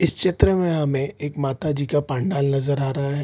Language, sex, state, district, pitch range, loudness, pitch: Hindi, male, Bihar, East Champaran, 140-155 Hz, -22 LUFS, 145 Hz